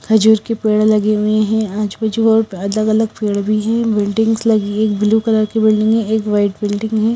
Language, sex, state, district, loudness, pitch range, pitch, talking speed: Hindi, female, Punjab, Kapurthala, -15 LUFS, 210-220 Hz, 215 Hz, 225 wpm